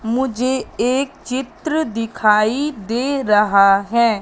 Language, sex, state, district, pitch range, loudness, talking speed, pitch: Hindi, female, Madhya Pradesh, Katni, 215-265 Hz, -17 LUFS, 100 wpm, 235 Hz